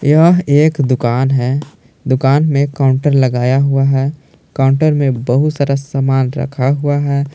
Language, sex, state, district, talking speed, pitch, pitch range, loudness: Hindi, male, Jharkhand, Palamu, 145 wpm, 140 Hz, 130-145 Hz, -13 LUFS